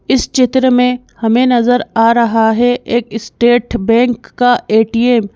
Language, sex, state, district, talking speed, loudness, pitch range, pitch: Hindi, female, Madhya Pradesh, Bhopal, 155 wpm, -12 LUFS, 230-245 Hz, 240 Hz